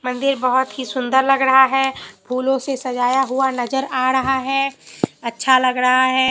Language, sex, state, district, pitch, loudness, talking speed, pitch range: Hindi, female, Bihar, Katihar, 260 Hz, -18 LUFS, 180 wpm, 255-270 Hz